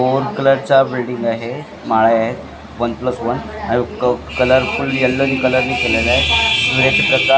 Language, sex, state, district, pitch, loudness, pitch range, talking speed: Marathi, male, Maharashtra, Mumbai Suburban, 130 Hz, -15 LUFS, 120-135 Hz, 145 wpm